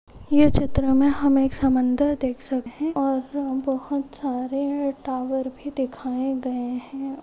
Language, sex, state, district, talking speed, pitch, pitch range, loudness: Hindi, female, Uttar Pradesh, Hamirpur, 135 wpm, 270 Hz, 260-280 Hz, -24 LUFS